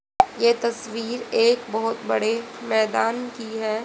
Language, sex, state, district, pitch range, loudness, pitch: Hindi, female, Haryana, Rohtak, 225-235 Hz, -23 LUFS, 230 Hz